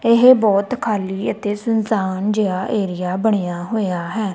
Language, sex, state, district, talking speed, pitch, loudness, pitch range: Punjabi, female, Punjab, Kapurthala, 140 wpm, 205 Hz, -18 LUFS, 190-220 Hz